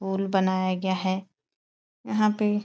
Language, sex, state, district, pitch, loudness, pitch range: Hindi, female, Uttar Pradesh, Etah, 190 Hz, -26 LUFS, 185-210 Hz